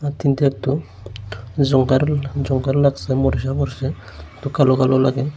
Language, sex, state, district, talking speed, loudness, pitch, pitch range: Bengali, male, Tripura, Unakoti, 110 wpm, -19 LUFS, 135 Hz, 130-140 Hz